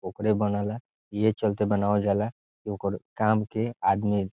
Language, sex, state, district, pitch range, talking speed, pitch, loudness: Bhojpuri, male, Bihar, Saran, 100-110 Hz, 165 wpm, 105 Hz, -27 LUFS